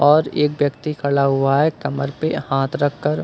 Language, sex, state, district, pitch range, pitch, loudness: Hindi, male, Uttar Pradesh, Lucknow, 140-150 Hz, 145 Hz, -19 LUFS